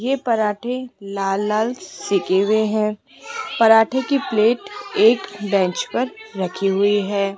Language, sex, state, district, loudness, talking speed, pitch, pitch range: Hindi, female, Rajasthan, Jaipur, -19 LUFS, 130 wpm, 215 Hz, 200-250 Hz